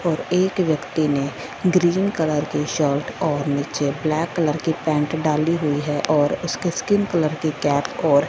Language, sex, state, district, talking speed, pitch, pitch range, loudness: Hindi, female, Punjab, Fazilka, 175 wpm, 155 Hz, 145-170 Hz, -21 LUFS